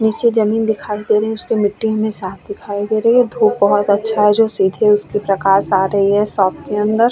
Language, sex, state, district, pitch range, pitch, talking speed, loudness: Hindi, female, Goa, North and South Goa, 200-220 Hz, 210 Hz, 245 wpm, -15 LUFS